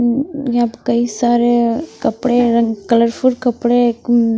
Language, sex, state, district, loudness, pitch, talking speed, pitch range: Hindi, female, Himachal Pradesh, Shimla, -15 LUFS, 240 Hz, 135 wpm, 235-245 Hz